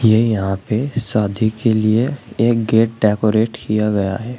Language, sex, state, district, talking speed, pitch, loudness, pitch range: Hindi, male, Uttar Pradesh, Shamli, 165 wpm, 110 Hz, -17 LUFS, 105-115 Hz